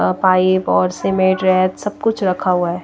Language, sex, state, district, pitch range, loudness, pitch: Hindi, female, Odisha, Nuapada, 180-190 Hz, -16 LUFS, 185 Hz